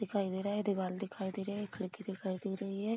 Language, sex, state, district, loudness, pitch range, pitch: Hindi, female, Bihar, Sitamarhi, -38 LUFS, 190-205 Hz, 200 Hz